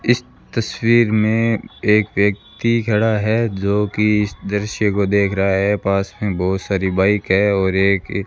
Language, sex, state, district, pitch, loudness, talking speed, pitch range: Hindi, male, Rajasthan, Bikaner, 105 Hz, -18 LUFS, 175 wpm, 100-110 Hz